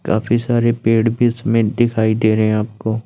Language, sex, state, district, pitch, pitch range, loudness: Hindi, male, Chandigarh, Chandigarh, 115 Hz, 110-120 Hz, -16 LUFS